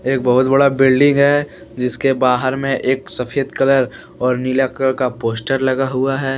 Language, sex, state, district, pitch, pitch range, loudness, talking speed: Hindi, male, Jharkhand, Deoghar, 130 Hz, 125-135 Hz, -16 LUFS, 180 wpm